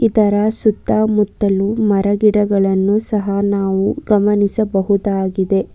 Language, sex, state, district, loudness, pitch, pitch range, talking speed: Kannada, female, Karnataka, Bangalore, -16 LUFS, 205 Hz, 195-210 Hz, 85 wpm